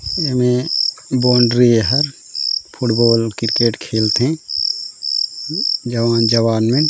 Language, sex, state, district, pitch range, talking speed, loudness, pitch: Chhattisgarhi, male, Chhattisgarh, Raigarh, 115-125 Hz, 85 wpm, -16 LUFS, 120 Hz